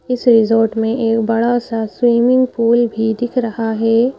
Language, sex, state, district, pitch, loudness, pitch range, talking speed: Hindi, female, Madhya Pradesh, Bhopal, 230 Hz, -15 LUFS, 225-240 Hz, 170 wpm